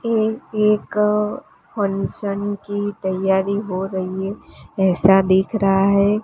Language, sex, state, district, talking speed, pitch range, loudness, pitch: Hindi, female, Gujarat, Gandhinagar, 115 wpm, 190-210 Hz, -19 LUFS, 200 Hz